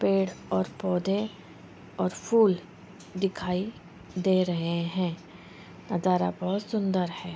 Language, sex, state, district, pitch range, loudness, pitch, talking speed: Hindi, female, Bihar, Gopalganj, 175-195 Hz, -28 LUFS, 185 Hz, 105 wpm